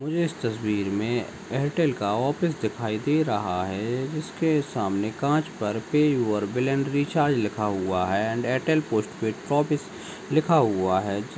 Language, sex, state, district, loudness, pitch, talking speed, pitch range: Hindi, male, Rajasthan, Nagaur, -25 LUFS, 120 Hz, 150 wpm, 105-150 Hz